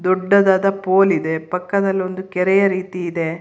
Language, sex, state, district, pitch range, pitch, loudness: Kannada, female, Karnataka, Bangalore, 180-195 Hz, 185 Hz, -17 LUFS